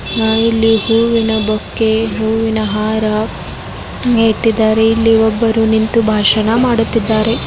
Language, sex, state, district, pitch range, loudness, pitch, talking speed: Kannada, female, Karnataka, Belgaum, 220-225 Hz, -13 LUFS, 220 Hz, 90 wpm